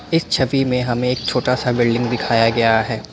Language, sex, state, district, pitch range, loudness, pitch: Hindi, male, Assam, Kamrup Metropolitan, 115-125 Hz, -18 LUFS, 125 Hz